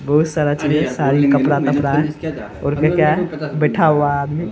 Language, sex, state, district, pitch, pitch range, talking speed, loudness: Hindi, male, Bihar, Araria, 150 Hz, 145-155 Hz, 200 wpm, -17 LUFS